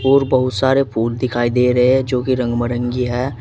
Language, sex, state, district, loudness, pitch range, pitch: Hindi, male, Uttar Pradesh, Saharanpur, -17 LUFS, 120-130 Hz, 125 Hz